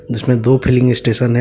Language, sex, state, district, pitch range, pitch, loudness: Hindi, male, Jharkhand, Deoghar, 120-125 Hz, 125 Hz, -14 LUFS